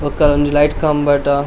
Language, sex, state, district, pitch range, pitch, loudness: Tulu, male, Karnataka, Dakshina Kannada, 145-150 Hz, 145 Hz, -14 LUFS